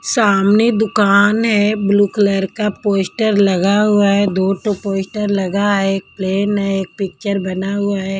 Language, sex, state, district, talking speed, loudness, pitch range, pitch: Hindi, female, Maharashtra, Mumbai Suburban, 170 wpm, -15 LUFS, 195-210 Hz, 200 Hz